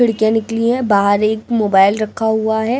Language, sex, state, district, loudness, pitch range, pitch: Hindi, female, Delhi, New Delhi, -15 LUFS, 210-225 Hz, 220 Hz